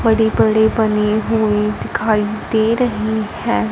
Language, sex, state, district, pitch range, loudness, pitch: Hindi, female, Punjab, Fazilka, 210-225 Hz, -16 LUFS, 220 Hz